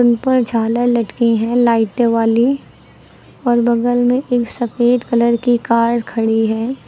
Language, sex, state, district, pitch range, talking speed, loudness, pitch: Hindi, female, Uttar Pradesh, Lucknow, 230-245 Hz, 140 wpm, -15 LUFS, 235 Hz